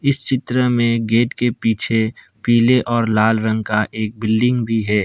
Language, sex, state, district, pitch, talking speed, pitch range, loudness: Hindi, male, Assam, Kamrup Metropolitan, 115 Hz, 180 wpm, 110-120 Hz, -17 LUFS